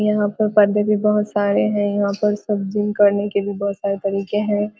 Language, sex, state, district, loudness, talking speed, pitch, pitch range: Hindi, female, Bihar, Vaishali, -19 LUFS, 250 wpm, 205 Hz, 200-210 Hz